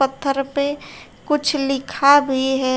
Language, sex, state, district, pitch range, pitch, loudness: Hindi, female, Uttar Pradesh, Shamli, 265-285 Hz, 275 Hz, -18 LUFS